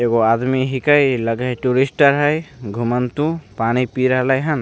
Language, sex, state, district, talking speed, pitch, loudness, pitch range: Maithili, male, Bihar, Begusarai, 170 wpm, 130 Hz, -17 LUFS, 120-140 Hz